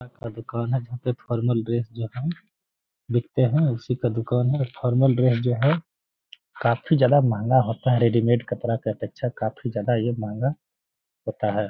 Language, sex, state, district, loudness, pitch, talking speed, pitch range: Hindi, male, Bihar, Gaya, -24 LUFS, 125 Hz, 180 wpm, 115-130 Hz